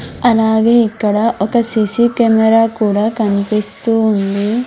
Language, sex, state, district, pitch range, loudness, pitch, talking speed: Telugu, female, Andhra Pradesh, Sri Satya Sai, 210-230 Hz, -13 LUFS, 220 Hz, 105 wpm